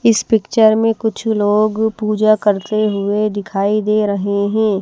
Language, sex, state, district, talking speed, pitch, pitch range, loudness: Hindi, female, Himachal Pradesh, Shimla, 150 wpm, 215 Hz, 205-220 Hz, -15 LUFS